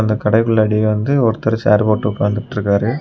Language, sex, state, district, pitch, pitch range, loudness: Tamil, male, Tamil Nadu, Kanyakumari, 110 Hz, 105-115 Hz, -16 LUFS